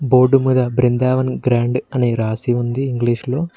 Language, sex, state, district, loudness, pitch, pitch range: Telugu, male, Telangana, Mahabubabad, -17 LUFS, 125 Hz, 120-130 Hz